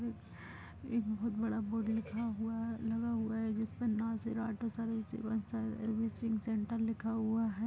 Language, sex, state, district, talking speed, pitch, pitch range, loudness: Hindi, female, Chhattisgarh, Kabirdham, 100 wpm, 225 Hz, 220-225 Hz, -37 LUFS